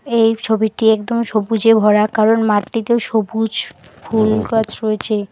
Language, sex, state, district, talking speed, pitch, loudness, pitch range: Bengali, female, West Bengal, Alipurduar, 125 wpm, 220 Hz, -16 LUFS, 215-225 Hz